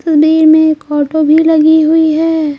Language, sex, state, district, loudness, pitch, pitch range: Hindi, female, Bihar, Patna, -9 LUFS, 315 Hz, 310-320 Hz